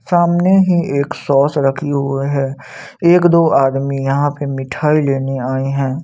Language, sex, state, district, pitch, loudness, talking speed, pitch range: Hindi, male, Chandigarh, Chandigarh, 140 Hz, -15 LUFS, 160 wpm, 135-160 Hz